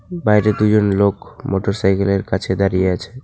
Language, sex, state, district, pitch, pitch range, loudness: Bengali, male, West Bengal, Alipurduar, 100 Hz, 95-105 Hz, -17 LUFS